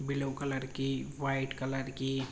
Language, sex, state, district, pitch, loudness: Hindi, male, Uttar Pradesh, Jalaun, 135 Hz, -35 LUFS